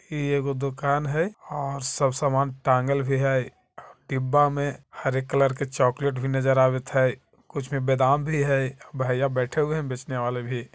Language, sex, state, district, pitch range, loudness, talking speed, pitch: Hindi, male, Bihar, Jahanabad, 130-140 Hz, -25 LUFS, 180 wpm, 135 Hz